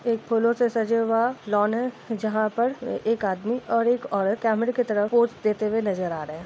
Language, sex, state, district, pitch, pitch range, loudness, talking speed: Hindi, female, Bihar, Gopalganj, 225 Hz, 210-235 Hz, -24 LUFS, 225 wpm